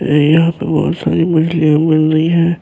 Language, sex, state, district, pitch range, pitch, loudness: Urdu, male, Bihar, Saharsa, 155-170 Hz, 160 Hz, -13 LUFS